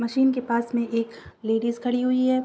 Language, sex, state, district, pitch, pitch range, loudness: Hindi, female, Uttar Pradesh, Gorakhpur, 235 Hz, 235-255 Hz, -25 LUFS